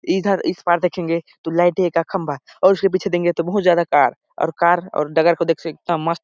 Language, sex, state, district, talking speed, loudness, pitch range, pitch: Hindi, male, Chhattisgarh, Sarguja, 230 wpm, -19 LUFS, 165-180 Hz, 175 Hz